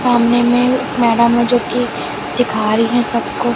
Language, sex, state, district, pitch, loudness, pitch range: Hindi, female, Chhattisgarh, Raipur, 240 Hz, -15 LUFS, 235-245 Hz